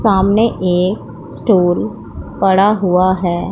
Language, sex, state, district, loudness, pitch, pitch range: Hindi, female, Punjab, Pathankot, -14 LUFS, 185 Hz, 175-195 Hz